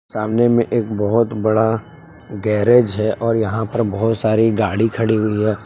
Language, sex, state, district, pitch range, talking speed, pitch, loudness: Hindi, male, Jharkhand, Palamu, 105-115 Hz, 170 wpm, 110 Hz, -17 LUFS